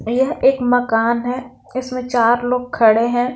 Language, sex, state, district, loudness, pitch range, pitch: Hindi, female, Bihar, Patna, -17 LUFS, 235-255 Hz, 245 Hz